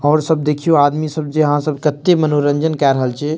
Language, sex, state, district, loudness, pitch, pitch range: Maithili, male, Bihar, Madhepura, -15 LUFS, 150 Hz, 145-155 Hz